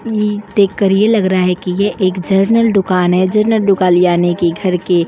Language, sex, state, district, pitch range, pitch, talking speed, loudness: Hindi, female, Uttar Pradesh, Jyotiba Phule Nagar, 180-210 Hz, 190 Hz, 225 wpm, -13 LUFS